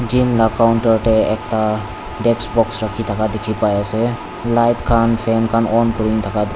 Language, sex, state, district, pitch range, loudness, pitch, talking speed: Nagamese, male, Nagaland, Dimapur, 110-115 Hz, -16 LUFS, 110 Hz, 185 wpm